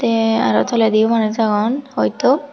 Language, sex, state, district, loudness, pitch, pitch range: Chakma, female, Tripura, Dhalai, -16 LUFS, 225 Hz, 220-250 Hz